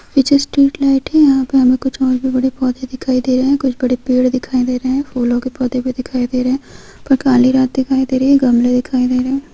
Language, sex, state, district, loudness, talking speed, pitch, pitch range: Hindi, female, Bihar, Vaishali, -15 LUFS, 270 wpm, 260 Hz, 255-270 Hz